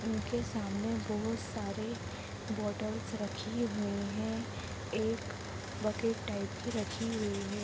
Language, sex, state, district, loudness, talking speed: Hindi, female, Chhattisgarh, Raigarh, -37 LUFS, 120 wpm